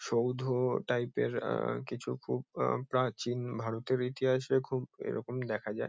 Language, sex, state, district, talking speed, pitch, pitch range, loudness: Bengali, male, West Bengal, Kolkata, 140 wpm, 125 Hz, 115-130 Hz, -34 LUFS